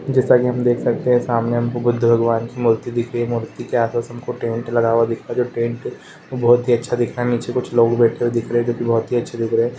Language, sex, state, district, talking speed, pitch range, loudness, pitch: Hindi, male, Uttar Pradesh, Ghazipur, 290 wpm, 115-120 Hz, -19 LUFS, 120 Hz